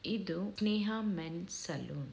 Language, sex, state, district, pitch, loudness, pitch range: Kannada, female, Karnataka, Dakshina Kannada, 200 Hz, -37 LUFS, 165-215 Hz